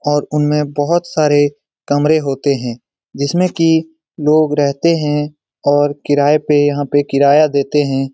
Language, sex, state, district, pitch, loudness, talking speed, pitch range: Hindi, male, Bihar, Lakhisarai, 145 Hz, -14 LUFS, 145 wpm, 145-155 Hz